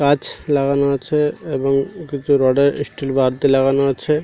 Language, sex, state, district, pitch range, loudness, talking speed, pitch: Bengali, male, Odisha, Malkangiri, 135-145 Hz, -18 LUFS, 155 wpm, 140 Hz